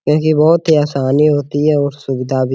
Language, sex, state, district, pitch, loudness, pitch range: Hindi, male, Bihar, Araria, 145 Hz, -14 LUFS, 135-150 Hz